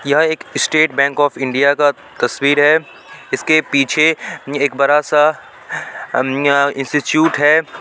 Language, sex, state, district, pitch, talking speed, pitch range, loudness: Hindi, male, Bihar, Supaul, 145 Hz, 125 wpm, 140-155 Hz, -15 LUFS